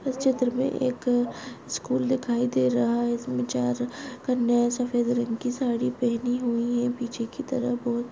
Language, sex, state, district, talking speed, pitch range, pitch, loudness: Hindi, female, Maharashtra, Dhule, 170 wpm, 235-250 Hz, 245 Hz, -26 LUFS